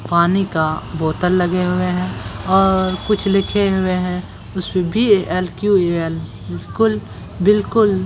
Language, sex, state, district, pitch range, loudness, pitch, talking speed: Hindi, female, Bihar, Purnia, 165-195 Hz, -17 LUFS, 180 Hz, 95 wpm